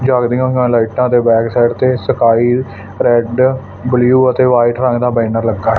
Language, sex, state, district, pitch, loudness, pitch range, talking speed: Punjabi, male, Punjab, Fazilka, 120 Hz, -13 LUFS, 115-125 Hz, 175 wpm